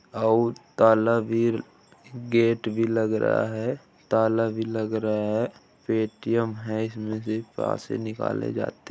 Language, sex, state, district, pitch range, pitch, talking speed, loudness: Hindi, male, Uttar Pradesh, Muzaffarnagar, 110-115 Hz, 110 Hz, 160 wpm, -25 LUFS